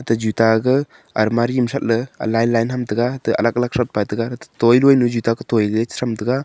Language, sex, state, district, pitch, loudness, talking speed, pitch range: Wancho, male, Arunachal Pradesh, Longding, 120 Hz, -18 LUFS, 240 wpm, 115-125 Hz